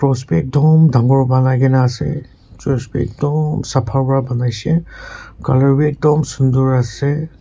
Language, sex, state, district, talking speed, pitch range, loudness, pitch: Nagamese, male, Nagaland, Kohima, 155 wpm, 130-150 Hz, -15 LUFS, 135 Hz